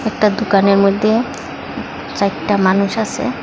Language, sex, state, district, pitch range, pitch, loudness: Bengali, female, Assam, Hailakandi, 195-220 Hz, 205 Hz, -16 LUFS